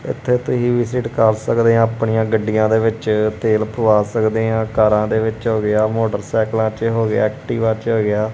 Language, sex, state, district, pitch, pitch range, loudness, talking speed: Punjabi, male, Punjab, Kapurthala, 110 Hz, 110-115 Hz, -17 LUFS, 210 wpm